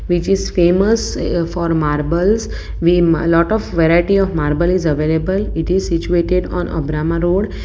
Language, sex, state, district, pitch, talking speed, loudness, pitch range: English, female, Gujarat, Valsad, 170 Hz, 165 wpm, -16 LUFS, 165-185 Hz